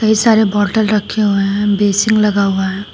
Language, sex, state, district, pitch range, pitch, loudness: Hindi, female, Uttar Pradesh, Shamli, 200-215 Hz, 205 Hz, -13 LUFS